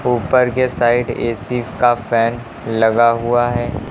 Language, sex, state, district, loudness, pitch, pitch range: Hindi, male, Uttar Pradesh, Lucknow, -16 LUFS, 120 Hz, 115-125 Hz